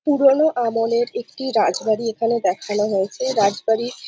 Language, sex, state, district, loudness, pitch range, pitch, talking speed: Bengali, female, West Bengal, Jhargram, -20 LUFS, 210-260 Hz, 230 Hz, 120 wpm